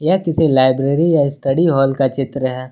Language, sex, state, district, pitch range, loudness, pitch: Hindi, male, Jharkhand, Ranchi, 130-165 Hz, -15 LUFS, 140 Hz